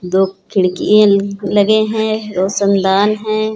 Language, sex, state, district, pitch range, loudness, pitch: Hindi, female, Uttar Pradesh, Hamirpur, 190-215 Hz, -14 LUFS, 200 Hz